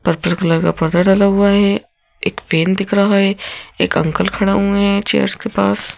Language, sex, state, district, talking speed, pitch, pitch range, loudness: Hindi, female, Madhya Pradesh, Bhopal, 200 wpm, 195 Hz, 165-200 Hz, -15 LUFS